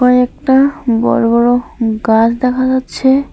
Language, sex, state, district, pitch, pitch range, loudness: Bengali, female, West Bengal, Alipurduar, 250 Hz, 235-260 Hz, -13 LUFS